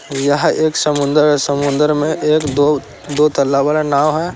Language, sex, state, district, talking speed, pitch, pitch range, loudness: Hindi, male, Bihar, Sitamarhi, 135 wpm, 145 Hz, 140-155 Hz, -15 LUFS